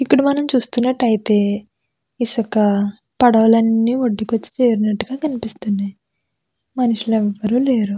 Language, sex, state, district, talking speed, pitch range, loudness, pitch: Telugu, female, Andhra Pradesh, Krishna, 90 wpm, 210-250 Hz, -18 LUFS, 225 Hz